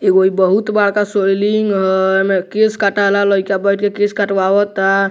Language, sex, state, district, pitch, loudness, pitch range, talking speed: Bhojpuri, male, Bihar, Muzaffarpur, 200 Hz, -14 LUFS, 195-205 Hz, 150 wpm